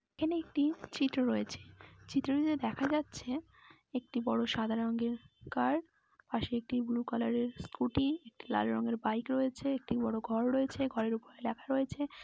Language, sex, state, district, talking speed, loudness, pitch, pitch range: Bengali, female, West Bengal, Jalpaiguri, 140 wpm, -35 LUFS, 245 Hz, 230-275 Hz